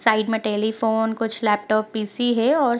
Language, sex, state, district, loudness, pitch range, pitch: Hindi, female, Bihar, Sitamarhi, -22 LUFS, 215-230 Hz, 220 Hz